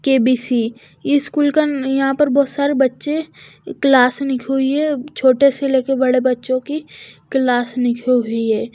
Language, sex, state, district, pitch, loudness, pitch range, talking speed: Hindi, female, Bihar, West Champaran, 265 Hz, -17 LUFS, 250-280 Hz, 160 wpm